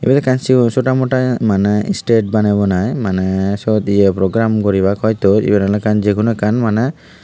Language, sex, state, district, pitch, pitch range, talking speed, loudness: Chakma, male, Tripura, Unakoti, 105 Hz, 100-120 Hz, 165 wpm, -14 LUFS